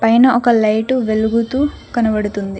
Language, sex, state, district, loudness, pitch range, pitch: Telugu, female, Telangana, Mahabubabad, -15 LUFS, 215-245 Hz, 225 Hz